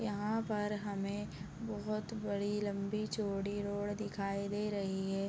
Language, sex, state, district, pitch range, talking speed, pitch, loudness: Hindi, female, Bihar, Begusarai, 200-210 Hz, 135 wpm, 205 Hz, -38 LUFS